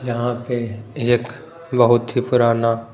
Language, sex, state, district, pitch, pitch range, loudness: Hindi, male, Punjab, Pathankot, 120 Hz, 115-125 Hz, -19 LUFS